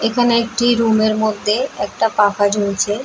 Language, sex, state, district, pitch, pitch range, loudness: Bengali, female, West Bengal, Jalpaiguri, 215 Hz, 205-235 Hz, -16 LUFS